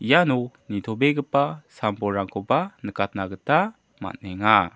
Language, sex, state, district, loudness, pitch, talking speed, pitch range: Garo, male, Meghalaya, South Garo Hills, -24 LUFS, 110 Hz, 75 wpm, 100-145 Hz